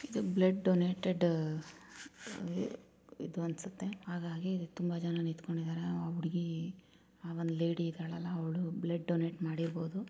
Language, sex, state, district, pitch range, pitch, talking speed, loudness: Kannada, female, Karnataka, Chamarajanagar, 165-180 Hz, 170 Hz, 100 wpm, -36 LUFS